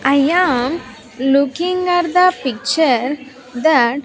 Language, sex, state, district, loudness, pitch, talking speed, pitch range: English, female, Andhra Pradesh, Sri Satya Sai, -16 LUFS, 280 Hz, 120 wpm, 255-345 Hz